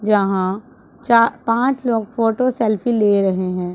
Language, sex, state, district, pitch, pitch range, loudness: Hindi, female, Punjab, Pathankot, 225 Hz, 200-235 Hz, -18 LUFS